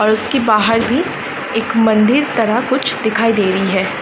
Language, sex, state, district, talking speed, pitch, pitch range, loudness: Hindi, female, Uttar Pradesh, Varanasi, 180 wpm, 225 Hz, 215-245 Hz, -15 LUFS